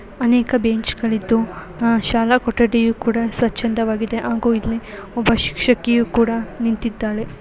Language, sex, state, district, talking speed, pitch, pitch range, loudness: Kannada, female, Karnataka, Belgaum, 105 wpm, 230 Hz, 225-235 Hz, -19 LUFS